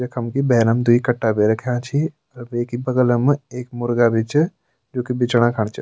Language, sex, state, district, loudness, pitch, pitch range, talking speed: Garhwali, male, Uttarakhand, Tehri Garhwal, -19 LUFS, 120 Hz, 120-130 Hz, 195 wpm